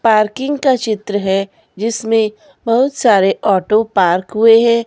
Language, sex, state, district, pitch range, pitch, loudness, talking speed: Hindi, female, Himachal Pradesh, Shimla, 205-235 Hz, 220 Hz, -14 LUFS, 135 wpm